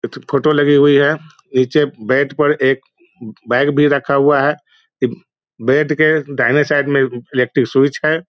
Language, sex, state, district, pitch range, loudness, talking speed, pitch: Hindi, male, Bihar, Muzaffarpur, 135-150 Hz, -15 LUFS, 165 wpm, 145 Hz